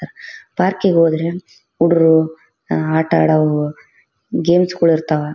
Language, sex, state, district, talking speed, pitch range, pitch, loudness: Kannada, female, Karnataka, Bellary, 100 wpm, 155-180 Hz, 165 Hz, -16 LUFS